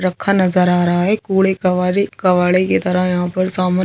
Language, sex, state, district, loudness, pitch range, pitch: Hindi, female, Delhi, New Delhi, -16 LUFS, 180-190 Hz, 185 Hz